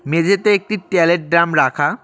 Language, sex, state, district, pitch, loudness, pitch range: Bengali, male, West Bengal, Cooch Behar, 175 Hz, -15 LUFS, 170-200 Hz